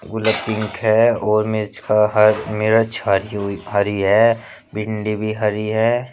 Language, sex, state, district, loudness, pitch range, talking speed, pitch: Hindi, male, Uttar Pradesh, Shamli, -18 LUFS, 105-110 Hz, 145 wpm, 110 Hz